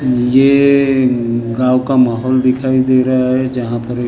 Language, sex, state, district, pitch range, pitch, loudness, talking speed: Hindi, male, Maharashtra, Gondia, 125-130 Hz, 130 Hz, -13 LUFS, 175 wpm